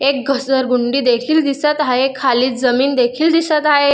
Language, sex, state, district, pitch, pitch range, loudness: Marathi, female, Maharashtra, Dhule, 270 Hz, 255-295 Hz, -15 LUFS